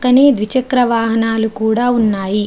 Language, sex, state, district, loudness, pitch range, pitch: Telugu, female, Telangana, Adilabad, -14 LUFS, 220-250 Hz, 225 Hz